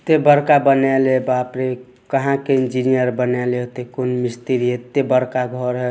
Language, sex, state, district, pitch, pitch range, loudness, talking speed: Hindi, male, Bihar, Samastipur, 130 Hz, 125-135 Hz, -18 LUFS, 185 wpm